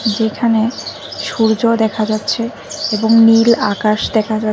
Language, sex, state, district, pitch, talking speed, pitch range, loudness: Bengali, female, Tripura, West Tripura, 220 Hz, 120 wpm, 215-230 Hz, -14 LUFS